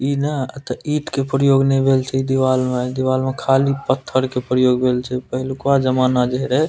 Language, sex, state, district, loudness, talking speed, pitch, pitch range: Maithili, male, Bihar, Purnia, -18 LUFS, 225 wpm, 130 Hz, 130-135 Hz